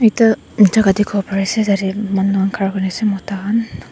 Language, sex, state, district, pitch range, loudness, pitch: Nagamese, female, Nagaland, Dimapur, 195-215 Hz, -16 LUFS, 200 Hz